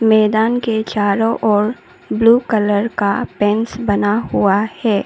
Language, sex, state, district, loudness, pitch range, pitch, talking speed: Hindi, female, Arunachal Pradesh, Lower Dibang Valley, -16 LUFS, 205-225 Hz, 220 Hz, 130 wpm